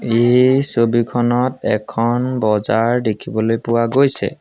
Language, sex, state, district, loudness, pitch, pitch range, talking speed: Assamese, male, Assam, Sonitpur, -16 LUFS, 120 Hz, 115-125 Hz, 95 wpm